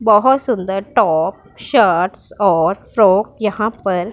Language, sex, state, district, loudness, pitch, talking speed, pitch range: Hindi, female, Punjab, Pathankot, -16 LUFS, 205 Hz, 130 wpm, 190-220 Hz